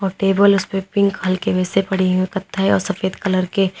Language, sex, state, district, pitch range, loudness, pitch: Hindi, female, Uttar Pradesh, Lalitpur, 185-195 Hz, -18 LUFS, 195 Hz